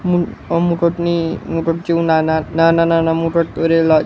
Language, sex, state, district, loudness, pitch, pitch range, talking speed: Gujarati, male, Gujarat, Gandhinagar, -16 LUFS, 165 Hz, 165-170 Hz, 105 wpm